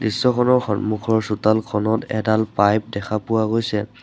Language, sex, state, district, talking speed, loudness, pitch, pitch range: Assamese, male, Assam, Sonitpur, 120 wpm, -20 LUFS, 110 Hz, 105-115 Hz